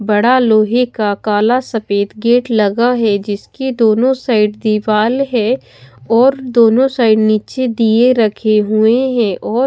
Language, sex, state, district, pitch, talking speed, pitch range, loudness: Hindi, female, Odisha, Khordha, 225 Hz, 135 wpm, 210-245 Hz, -13 LUFS